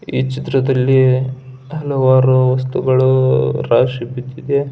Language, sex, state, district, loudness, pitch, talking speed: Kannada, male, Karnataka, Belgaum, -15 LUFS, 130 Hz, 75 wpm